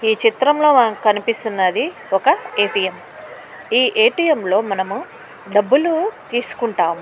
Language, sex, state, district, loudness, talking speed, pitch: Telugu, female, Andhra Pradesh, Krishna, -17 LUFS, 130 wpm, 235 Hz